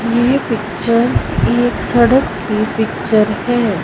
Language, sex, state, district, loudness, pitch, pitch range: Hindi, female, Punjab, Fazilka, -15 LUFS, 230 Hz, 215-240 Hz